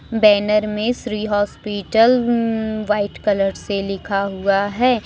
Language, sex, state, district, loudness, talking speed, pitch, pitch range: Hindi, female, Jharkhand, Deoghar, -19 LUFS, 130 wpm, 210 Hz, 200-225 Hz